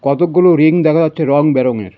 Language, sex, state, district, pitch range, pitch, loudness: Bengali, male, West Bengal, Cooch Behar, 140-165 Hz, 155 Hz, -12 LUFS